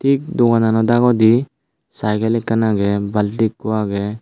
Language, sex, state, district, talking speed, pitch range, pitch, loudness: Chakma, male, Tripura, Dhalai, 130 wpm, 105-120 Hz, 110 Hz, -17 LUFS